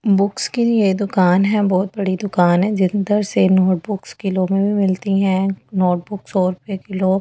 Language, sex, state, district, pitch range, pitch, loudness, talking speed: Hindi, female, Delhi, New Delhi, 185-205 Hz, 195 Hz, -18 LUFS, 185 wpm